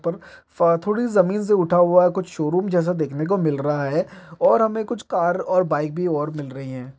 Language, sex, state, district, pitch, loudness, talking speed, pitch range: Hindi, male, Bihar, East Champaran, 175 Hz, -21 LUFS, 230 wpm, 150-190 Hz